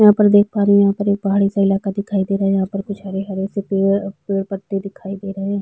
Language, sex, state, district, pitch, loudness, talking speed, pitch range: Hindi, female, Chhattisgarh, Jashpur, 195 Hz, -18 LUFS, 265 wpm, 195-200 Hz